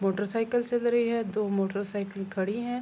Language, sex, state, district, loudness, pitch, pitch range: Urdu, female, Andhra Pradesh, Anantapur, -29 LUFS, 210 Hz, 195-235 Hz